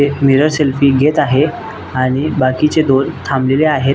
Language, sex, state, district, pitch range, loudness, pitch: Marathi, male, Maharashtra, Nagpur, 135-150 Hz, -13 LUFS, 140 Hz